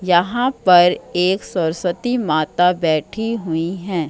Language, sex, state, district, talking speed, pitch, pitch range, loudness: Hindi, female, Madhya Pradesh, Katni, 115 wpm, 180 Hz, 170-200 Hz, -18 LUFS